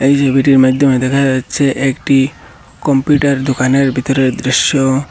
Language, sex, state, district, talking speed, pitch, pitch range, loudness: Bengali, male, Assam, Hailakandi, 115 wpm, 135 Hz, 130-140 Hz, -13 LUFS